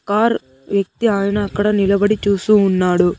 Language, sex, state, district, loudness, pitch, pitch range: Telugu, male, Andhra Pradesh, Sri Satya Sai, -16 LUFS, 200 Hz, 195-210 Hz